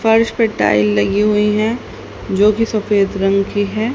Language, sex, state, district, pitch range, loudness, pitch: Hindi, female, Haryana, Rohtak, 195-220 Hz, -15 LUFS, 210 Hz